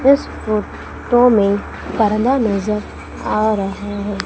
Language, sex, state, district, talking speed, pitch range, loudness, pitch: Hindi, female, Madhya Pradesh, Umaria, 115 wpm, 205-230 Hz, -17 LUFS, 215 Hz